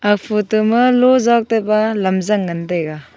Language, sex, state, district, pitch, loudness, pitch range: Wancho, female, Arunachal Pradesh, Longding, 215 Hz, -15 LUFS, 190-225 Hz